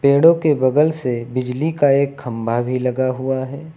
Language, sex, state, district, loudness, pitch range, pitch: Hindi, male, Uttar Pradesh, Lucknow, -18 LUFS, 125-150 Hz, 135 Hz